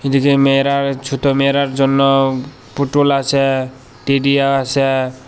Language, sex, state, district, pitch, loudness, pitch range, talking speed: Bengali, male, Tripura, Unakoti, 135 Hz, -15 LUFS, 135-140 Hz, 100 wpm